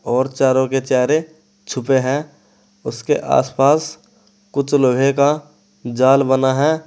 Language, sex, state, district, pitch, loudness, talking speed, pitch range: Hindi, male, Uttar Pradesh, Saharanpur, 140 Hz, -17 LUFS, 120 wpm, 130-155 Hz